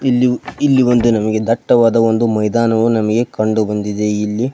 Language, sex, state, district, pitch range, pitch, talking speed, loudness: Kannada, male, Karnataka, Belgaum, 110-120 Hz, 115 Hz, 145 wpm, -15 LUFS